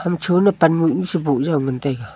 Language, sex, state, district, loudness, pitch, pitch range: Wancho, female, Arunachal Pradesh, Longding, -18 LUFS, 165 Hz, 140-175 Hz